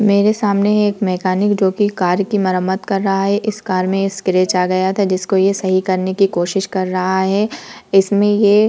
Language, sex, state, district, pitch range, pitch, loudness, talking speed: Hindi, female, Uttar Pradesh, Budaun, 185-205 Hz, 195 Hz, -16 LUFS, 205 wpm